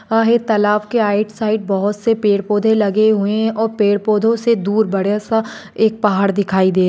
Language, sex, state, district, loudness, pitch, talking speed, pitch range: Hindi, female, Maharashtra, Sindhudurg, -16 LUFS, 215 Hz, 185 wpm, 205-220 Hz